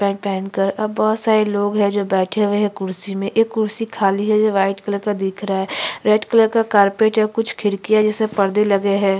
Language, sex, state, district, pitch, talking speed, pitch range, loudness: Hindi, female, Chhattisgarh, Sukma, 205 Hz, 230 wpm, 195-215 Hz, -18 LUFS